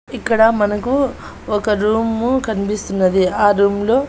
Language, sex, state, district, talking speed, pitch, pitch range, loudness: Telugu, female, Andhra Pradesh, Annamaya, 115 wpm, 215 Hz, 205-235 Hz, -16 LUFS